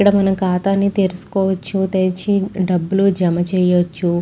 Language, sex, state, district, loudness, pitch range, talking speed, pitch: Telugu, female, Andhra Pradesh, Chittoor, -17 LUFS, 180-195 Hz, 115 wpm, 190 Hz